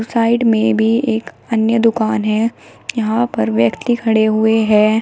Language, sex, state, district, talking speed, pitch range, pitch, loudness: Hindi, female, Uttar Pradesh, Shamli, 155 wpm, 215-230 Hz, 225 Hz, -15 LUFS